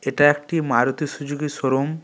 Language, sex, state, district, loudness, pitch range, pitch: Bengali, male, West Bengal, North 24 Parganas, -21 LUFS, 135-150 Hz, 145 Hz